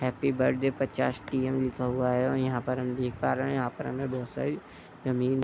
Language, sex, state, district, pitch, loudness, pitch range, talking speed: Hindi, male, Uttar Pradesh, Budaun, 130 Hz, -30 LUFS, 125-130 Hz, 255 wpm